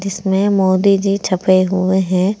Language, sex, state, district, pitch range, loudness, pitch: Hindi, female, Uttar Pradesh, Saharanpur, 185-195 Hz, -15 LUFS, 190 Hz